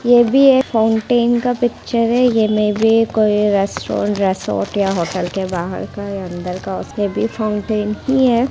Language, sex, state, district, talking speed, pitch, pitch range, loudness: Hindi, female, Bihar, Muzaffarpur, 175 wpm, 215 Hz, 200-240 Hz, -16 LUFS